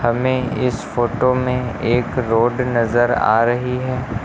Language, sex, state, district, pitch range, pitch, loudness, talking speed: Hindi, male, Uttar Pradesh, Lucknow, 120-125 Hz, 120 Hz, -18 LUFS, 140 wpm